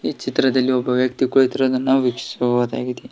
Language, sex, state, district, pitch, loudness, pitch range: Kannada, male, Karnataka, Koppal, 130 Hz, -19 LUFS, 125-130 Hz